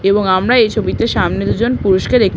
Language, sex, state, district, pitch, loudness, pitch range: Bengali, female, West Bengal, Paschim Medinipur, 205 Hz, -14 LUFS, 190-235 Hz